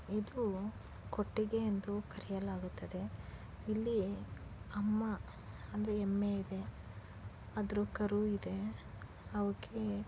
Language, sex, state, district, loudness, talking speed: Kannada, female, Karnataka, Chamarajanagar, -39 LUFS, 85 wpm